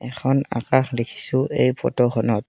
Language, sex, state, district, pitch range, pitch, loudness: Assamese, male, Assam, Kamrup Metropolitan, 115-130 Hz, 125 Hz, -21 LUFS